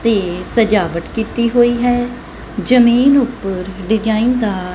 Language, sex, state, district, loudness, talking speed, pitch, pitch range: Punjabi, female, Punjab, Kapurthala, -15 LUFS, 115 wpm, 225 Hz, 195-245 Hz